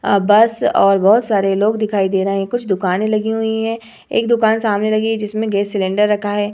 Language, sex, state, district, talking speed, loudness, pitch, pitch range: Hindi, female, Uttar Pradesh, Hamirpur, 230 wpm, -16 LUFS, 210 Hz, 200-220 Hz